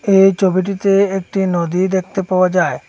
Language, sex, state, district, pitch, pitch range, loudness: Bengali, male, Assam, Hailakandi, 190 Hz, 185-195 Hz, -15 LUFS